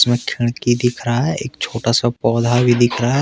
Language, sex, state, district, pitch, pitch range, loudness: Hindi, male, Jharkhand, Deoghar, 120 Hz, 120-125 Hz, -17 LUFS